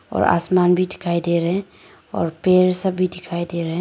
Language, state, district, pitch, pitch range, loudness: Hindi, Arunachal Pradesh, Lower Dibang Valley, 180 Hz, 170-185 Hz, -19 LUFS